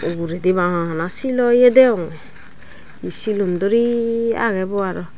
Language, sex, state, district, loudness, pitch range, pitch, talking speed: Chakma, female, Tripura, Dhalai, -18 LUFS, 175-235 Hz, 200 Hz, 125 wpm